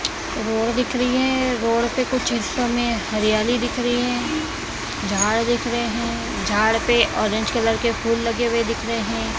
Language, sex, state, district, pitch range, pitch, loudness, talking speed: Hindi, female, Bihar, Saharsa, 220-240 Hz, 230 Hz, -21 LUFS, 180 wpm